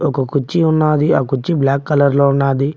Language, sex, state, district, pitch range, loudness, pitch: Telugu, male, Telangana, Mahabubabad, 135-155 Hz, -15 LUFS, 140 Hz